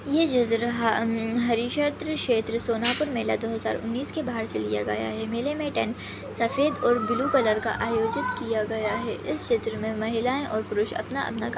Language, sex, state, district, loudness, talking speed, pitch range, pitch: Hindi, female, Maharashtra, Nagpur, -26 LUFS, 190 wpm, 225-260 Hz, 235 Hz